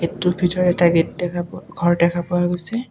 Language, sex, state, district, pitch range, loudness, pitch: Assamese, male, Assam, Kamrup Metropolitan, 170-180 Hz, -19 LUFS, 175 Hz